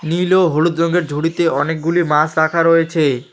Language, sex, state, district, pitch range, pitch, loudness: Bengali, male, West Bengal, Alipurduar, 155-170 Hz, 165 Hz, -15 LUFS